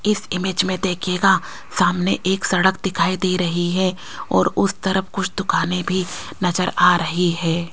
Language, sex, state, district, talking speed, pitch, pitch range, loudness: Hindi, female, Rajasthan, Jaipur, 165 wpm, 185 Hz, 180-190 Hz, -20 LUFS